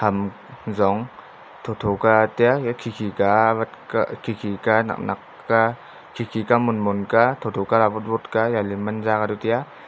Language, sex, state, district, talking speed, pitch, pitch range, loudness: Wancho, male, Arunachal Pradesh, Longding, 145 wpm, 110 Hz, 105-115 Hz, -21 LUFS